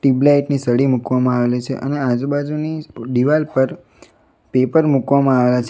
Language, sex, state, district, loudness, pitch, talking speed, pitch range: Gujarati, male, Gujarat, Valsad, -17 LUFS, 135 Hz, 145 wpm, 125-145 Hz